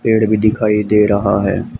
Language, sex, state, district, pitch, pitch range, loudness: Hindi, male, Haryana, Charkhi Dadri, 105 Hz, 105-110 Hz, -14 LUFS